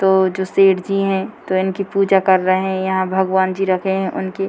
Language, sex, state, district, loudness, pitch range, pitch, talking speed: Hindi, female, Bihar, Purnia, -17 LUFS, 185-195 Hz, 190 Hz, 225 wpm